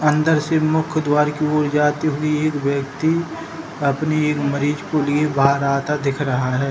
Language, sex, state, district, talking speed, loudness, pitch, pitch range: Hindi, male, Bihar, Jahanabad, 180 wpm, -19 LUFS, 150 Hz, 140-155 Hz